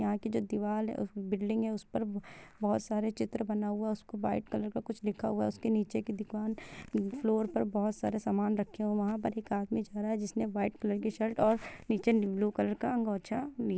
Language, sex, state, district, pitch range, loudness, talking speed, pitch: Hindi, female, Bihar, Gopalganj, 205-220 Hz, -34 LUFS, 235 wpm, 215 Hz